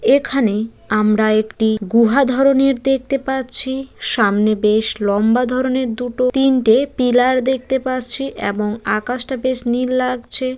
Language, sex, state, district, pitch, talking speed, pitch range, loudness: Bengali, female, West Bengal, Jalpaiguri, 250 Hz, 120 wpm, 220-265 Hz, -17 LUFS